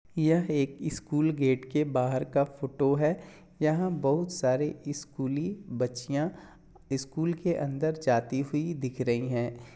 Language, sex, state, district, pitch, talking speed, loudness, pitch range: Hindi, male, Jharkhand, Jamtara, 145 Hz, 130 wpm, -29 LUFS, 130-160 Hz